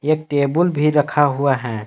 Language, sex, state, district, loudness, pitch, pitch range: Hindi, male, Jharkhand, Palamu, -17 LUFS, 145 Hz, 140-155 Hz